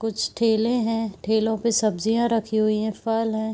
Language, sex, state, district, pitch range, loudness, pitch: Hindi, female, Bihar, East Champaran, 220-225 Hz, -23 LUFS, 220 Hz